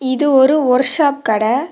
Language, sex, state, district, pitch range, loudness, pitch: Tamil, female, Tamil Nadu, Kanyakumari, 255-290 Hz, -13 LUFS, 270 Hz